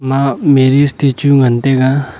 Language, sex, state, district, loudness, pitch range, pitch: Wancho, male, Arunachal Pradesh, Longding, -11 LUFS, 130-140 Hz, 135 Hz